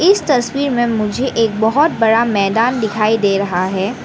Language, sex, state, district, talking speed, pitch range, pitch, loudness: Hindi, female, Arunachal Pradesh, Lower Dibang Valley, 175 wpm, 210-245 Hz, 225 Hz, -15 LUFS